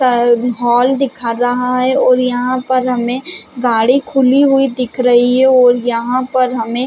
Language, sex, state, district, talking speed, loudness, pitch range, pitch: Hindi, female, Chhattisgarh, Bilaspur, 155 wpm, -13 LUFS, 245-260 Hz, 250 Hz